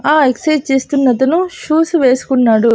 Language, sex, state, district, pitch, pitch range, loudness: Telugu, female, Andhra Pradesh, Annamaya, 275 Hz, 255-310 Hz, -13 LUFS